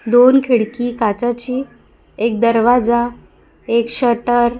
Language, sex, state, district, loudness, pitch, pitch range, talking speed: Marathi, female, Maharashtra, Gondia, -16 LUFS, 240 Hz, 235-245 Hz, 105 wpm